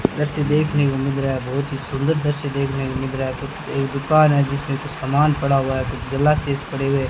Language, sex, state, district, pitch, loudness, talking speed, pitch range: Hindi, male, Rajasthan, Bikaner, 140 Hz, -21 LUFS, 255 wpm, 135-150 Hz